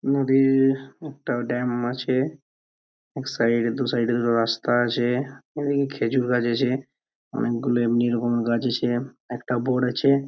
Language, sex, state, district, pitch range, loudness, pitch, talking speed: Bengali, male, West Bengal, Purulia, 120-135 Hz, -23 LUFS, 125 Hz, 170 wpm